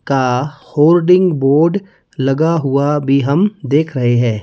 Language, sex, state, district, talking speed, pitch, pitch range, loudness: Hindi, male, Himachal Pradesh, Shimla, 150 wpm, 145 Hz, 135-165 Hz, -14 LUFS